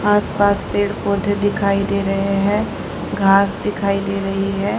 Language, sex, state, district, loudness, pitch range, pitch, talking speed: Hindi, male, Haryana, Charkhi Dadri, -18 LUFS, 195-205 Hz, 200 Hz, 150 wpm